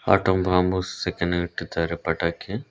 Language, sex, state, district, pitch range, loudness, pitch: Kannada, male, Karnataka, Koppal, 85-95 Hz, -24 LUFS, 90 Hz